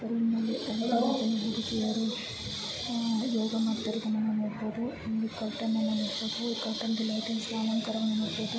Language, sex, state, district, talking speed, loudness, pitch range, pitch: Kannada, female, Karnataka, Bellary, 140 wpm, -31 LUFS, 220-230 Hz, 225 Hz